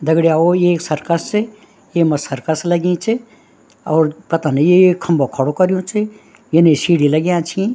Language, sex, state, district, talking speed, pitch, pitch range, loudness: Garhwali, female, Uttarakhand, Tehri Garhwal, 160 wpm, 170 Hz, 155-185 Hz, -15 LUFS